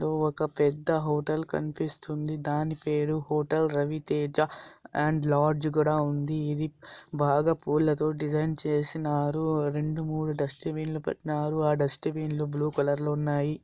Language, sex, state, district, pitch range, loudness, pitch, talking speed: Telugu, male, Andhra Pradesh, Anantapur, 150-155 Hz, -28 LUFS, 150 Hz, 135 wpm